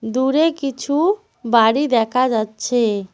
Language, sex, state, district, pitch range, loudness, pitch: Bengali, female, West Bengal, Cooch Behar, 225-285 Hz, -18 LUFS, 250 Hz